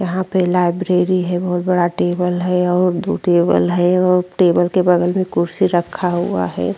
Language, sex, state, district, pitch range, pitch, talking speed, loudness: Hindi, female, Uttar Pradesh, Jyotiba Phule Nagar, 175-185 Hz, 180 Hz, 185 wpm, -16 LUFS